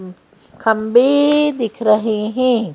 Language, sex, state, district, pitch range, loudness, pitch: Hindi, female, Madhya Pradesh, Bhopal, 215-255 Hz, -15 LUFS, 230 Hz